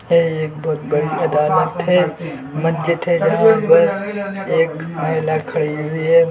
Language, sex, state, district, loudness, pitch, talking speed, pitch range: Hindi, male, Chhattisgarh, Bilaspur, -17 LUFS, 165 Hz, 145 wpm, 155-175 Hz